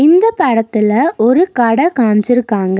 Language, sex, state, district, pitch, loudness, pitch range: Tamil, female, Tamil Nadu, Nilgiris, 235 Hz, -12 LUFS, 215-290 Hz